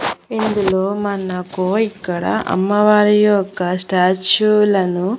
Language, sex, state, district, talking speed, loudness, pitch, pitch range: Telugu, female, Andhra Pradesh, Annamaya, 80 wpm, -16 LUFS, 195 Hz, 185-210 Hz